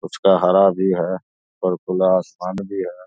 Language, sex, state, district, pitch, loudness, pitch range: Hindi, male, Bihar, Saharsa, 95 Hz, -19 LUFS, 90-95 Hz